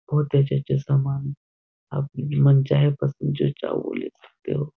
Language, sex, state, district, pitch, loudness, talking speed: Hindi, male, Bihar, Jahanabad, 140 Hz, -23 LUFS, 165 wpm